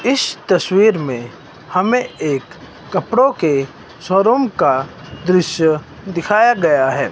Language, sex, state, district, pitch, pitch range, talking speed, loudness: Hindi, male, Himachal Pradesh, Shimla, 180 Hz, 150-220 Hz, 110 wpm, -16 LUFS